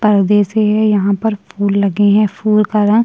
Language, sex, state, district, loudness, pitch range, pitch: Hindi, female, Chhattisgarh, Sukma, -13 LUFS, 200-215 Hz, 210 Hz